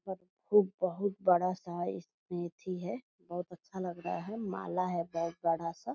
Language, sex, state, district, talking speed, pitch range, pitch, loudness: Hindi, female, Bihar, Purnia, 170 wpm, 175-190 Hz, 180 Hz, -35 LUFS